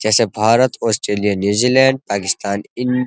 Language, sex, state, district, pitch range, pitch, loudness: Hindi, male, Uttar Pradesh, Muzaffarnagar, 100-125 Hz, 110 Hz, -16 LUFS